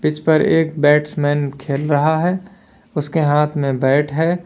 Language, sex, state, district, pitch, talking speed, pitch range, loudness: Hindi, male, Uttar Pradesh, Lalitpur, 150 Hz, 160 wpm, 145-160 Hz, -17 LUFS